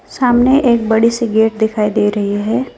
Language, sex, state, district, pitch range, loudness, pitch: Hindi, female, West Bengal, Alipurduar, 215-240 Hz, -14 LUFS, 225 Hz